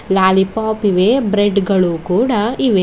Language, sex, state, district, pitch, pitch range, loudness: Kannada, female, Karnataka, Bidar, 200 Hz, 190-220 Hz, -15 LUFS